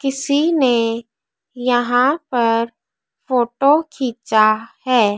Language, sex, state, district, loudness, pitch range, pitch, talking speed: Hindi, female, Madhya Pradesh, Dhar, -17 LUFS, 230-270 Hz, 245 Hz, 80 wpm